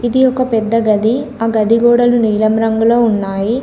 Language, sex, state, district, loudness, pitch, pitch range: Telugu, female, Telangana, Komaram Bheem, -13 LUFS, 230 Hz, 220-240 Hz